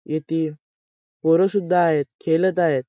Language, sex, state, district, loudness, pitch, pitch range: Marathi, male, Maharashtra, Chandrapur, -21 LUFS, 160 Hz, 155-175 Hz